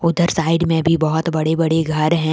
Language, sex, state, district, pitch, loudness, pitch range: Hindi, female, Jharkhand, Deoghar, 160 Hz, -17 LUFS, 160-165 Hz